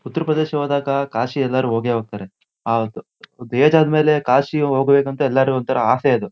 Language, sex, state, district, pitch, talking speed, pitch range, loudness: Kannada, male, Karnataka, Shimoga, 135 Hz, 170 wpm, 120-145 Hz, -18 LUFS